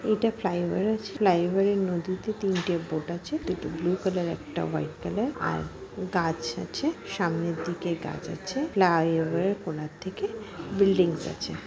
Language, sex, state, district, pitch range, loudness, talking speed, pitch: Bengali, female, West Bengal, Kolkata, 170-200 Hz, -28 LUFS, 140 wpm, 180 Hz